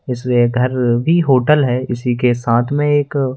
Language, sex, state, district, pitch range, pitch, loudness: Hindi, male, Madhya Pradesh, Bhopal, 120-145 Hz, 125 Hz, -15 LUFS